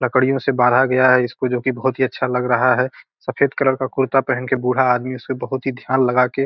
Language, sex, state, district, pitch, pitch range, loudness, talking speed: Hindi, male, Bihar, Gopalganj, 130 Hz, 125-130 Hz, -18 LUFS, 270 wpm